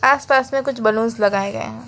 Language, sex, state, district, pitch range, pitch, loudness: Hindi, female, West Bengal, Alipurduar, 205-270 Hz, 230 Hz, -18 LUFS